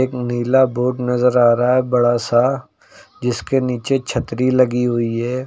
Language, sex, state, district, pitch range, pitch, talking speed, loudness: Hindi, male, Uttar Pradesh, Lucknow, 120-130 Hz, 125 Hz, 155 wpm, -17 LUFS